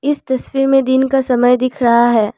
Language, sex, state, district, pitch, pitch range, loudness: Hindi, female, Assam, Kamrup Metropolitan, 260 Hz, 245-270 Hz, -14 LUFS